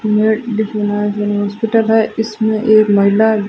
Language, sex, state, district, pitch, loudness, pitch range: Hindi, female, Rajasthan, Bikaner, 215 Hz, -14 LUFS, 205-220 Hz